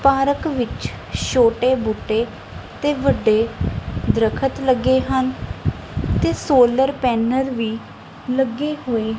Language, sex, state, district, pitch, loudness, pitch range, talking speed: Punjabi, female, Punjab, Kapurthala, 255 Hz, -20 LUFS, 230-270 Hz, 100 wpm